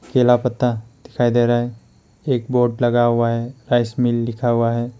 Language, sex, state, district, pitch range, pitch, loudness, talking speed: Hindi, male, West Bengal, Alipurduar, 115-125 Hz, 120 Hz, -19 LUFS, 190 wpm